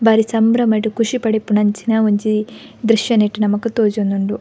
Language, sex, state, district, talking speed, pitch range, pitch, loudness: Tulu, female, Karnataka, Dakshina Kannada, 120 wpm, 210-225 Hz, 220 Hz, -16 LUFS